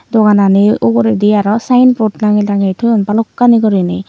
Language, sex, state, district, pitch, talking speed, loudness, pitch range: Chakma, female, Tripura, Unakoti, 210 Hz, 145 wpm, -11 LUFS, 195-225 Hz